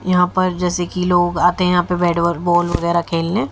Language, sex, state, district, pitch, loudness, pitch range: Hindi, female, Haryana, Jhajjar, 175 Hz, -17 LUFS, 175-180 Hz